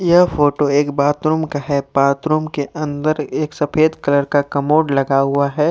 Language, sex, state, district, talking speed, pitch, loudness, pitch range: Hindi, male, Jharkhand, Deoghar, 180 wpm, 145 Hz, -17 LUFS, 140-155 Hz